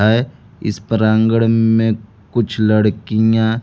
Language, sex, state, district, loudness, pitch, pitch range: Hindi, male, Bihar, Kaimur, -16 LUFS, 110 Hz, 110-115 Hz